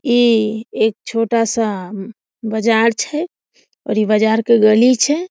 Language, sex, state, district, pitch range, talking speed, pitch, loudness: Maithili, female, Bihar, Samastipur, 220-240 Hz, 135 wpm, 225 Hz, -16 LUFS